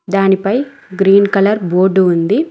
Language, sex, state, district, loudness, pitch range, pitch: Telugu, female, Telangana, Mahabubabad, -12 LUFS, 190-205 Hz, 195 Hz